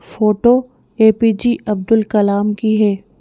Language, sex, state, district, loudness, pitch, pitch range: Hindi, female, Madhya Pradesh, Bhopal, -15 LUFS, 220 Hz, 210-230 Hz